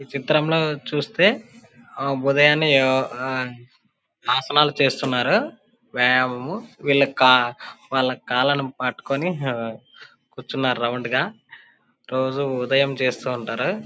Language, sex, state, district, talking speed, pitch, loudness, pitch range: Telugu, male, Andhra Pradesh, Anantapur, 105 wpm, 135 Hz, -21 LUFS, 125-140 Hz